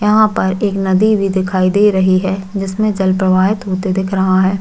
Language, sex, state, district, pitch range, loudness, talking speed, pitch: Hindi, female, Chhattisgarh, Jashpur, 190-205 Hz, -14 LUFS, 210 wpm, 190 Hz